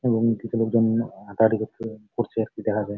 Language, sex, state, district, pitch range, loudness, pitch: Bengali, male, West Bengal, Jalpaiguri, 110-115 Hz, -24 LUFS, 115 Hz